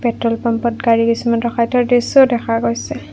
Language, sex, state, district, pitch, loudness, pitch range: Assamese, female, Assam, Kamrup Metropolitan, 235 Hz, -15 LUFS, 230-240 Hz